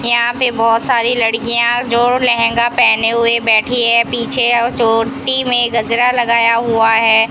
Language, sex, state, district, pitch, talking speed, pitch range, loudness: Hindi, female, Rajasthan, Bikaner, 235 Hz, 155 wpm, 230-245 Hz, -12 LUFS